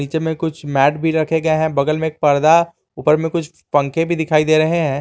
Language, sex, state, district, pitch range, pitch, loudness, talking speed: Hindi, male, Jharkhand, Garhwa, 150-160 Hz, 160 Hz, -17 LUFS, 240 wpm